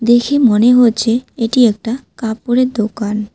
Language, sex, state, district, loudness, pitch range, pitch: Bengali, female, West Bengal, Alipurduar, -14 LUFS, 220-245 Hz, 235 Hz